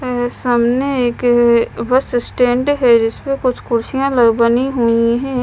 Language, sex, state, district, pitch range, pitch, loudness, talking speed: Hindi, female, Punjab, Kapurthala, 235-255 Hz, 245 Hz, -15 LUFS, 145 wpm